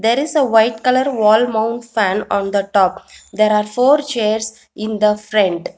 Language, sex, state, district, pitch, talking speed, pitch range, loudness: English, female, Telangana, Hyderabad, 220 Hz, 185 wpm, 210-235 Hz, -16 LUFS